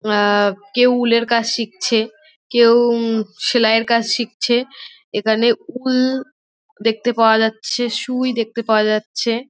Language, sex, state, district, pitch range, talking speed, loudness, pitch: Bengali, female, West Bengal, Dakshin Dinajpur, 220-250 Hz, 115 wpm, -17 LUFS, 235 Hz